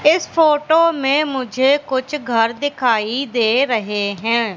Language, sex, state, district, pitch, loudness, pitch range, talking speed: Hindi, female, Madhya Pradesh, Katni, 260 Hz, -17 LUFS, 230-295 Hz, 130 wpm